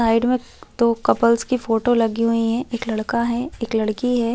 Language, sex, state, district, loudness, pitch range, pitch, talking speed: Hindi, female, Chhattisgarh, Balrampur, -20 LUFS, 230-240 Hz, 235 Hz, 205 wpm